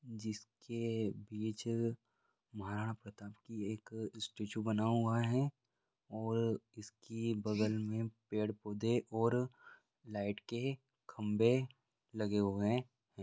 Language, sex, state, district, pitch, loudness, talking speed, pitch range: Hindi, male, Bihar, Vaishali, 110 Hz, -39 LUFS, 105 wpm, 105-115 Hz